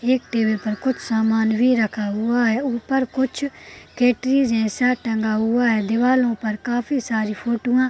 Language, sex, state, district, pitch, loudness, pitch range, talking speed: Hindi, female, Bihar, Purnia, 240 Hz, -20 LUFS, 220-255 Hz, 165 wpm